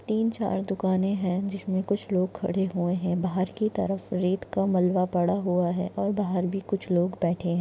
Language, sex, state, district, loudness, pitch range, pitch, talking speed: Hindi, female, Maharashtra, Nagpur, -27 LUFS, 180-200 Hz, 190 Hz, 215 wpm